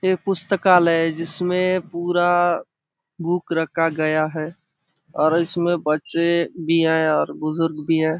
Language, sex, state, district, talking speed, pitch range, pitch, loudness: Hindi, male, Chhattisgarh, Bastar, 130 wpm, 160-175 Hz, 165 Hz, -20 LUFS